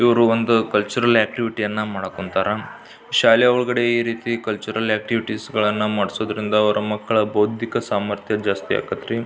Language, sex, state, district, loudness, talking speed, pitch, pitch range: Kannada, male, Karnataka, Belgaum, -20 LUFS, 130 wpm, 110 Hz, 105-115 Hz